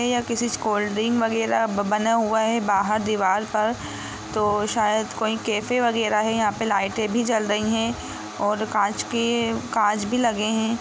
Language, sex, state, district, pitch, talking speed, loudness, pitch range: Hindi, female, Jharkhand, Sahebganj, 220 Hz, 180 wpm, -23 LUFS, 210-230 Hz